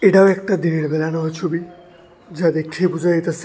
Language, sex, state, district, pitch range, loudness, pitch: Bengali, male, Tripura, West Tripura, 165-180 Hz, -19 LUFS, 170 Hz